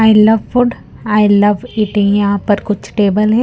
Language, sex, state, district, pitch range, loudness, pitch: Hindi, female, Punjab, Kapurthala, 205-220 Hz, -13 LUFS, 210 Hz